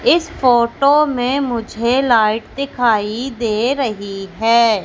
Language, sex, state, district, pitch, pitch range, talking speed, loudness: Hindi, female, Madhya Pradesh, Katni, 235 Hz, 220-265 Hz, 110 wpm, -16 LUFS